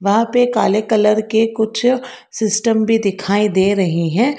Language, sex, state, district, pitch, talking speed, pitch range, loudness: Hindi, female, Karnataka, Bangalore, 220 Hz, 165 wpm, 200-230 Hz, -16 LUFS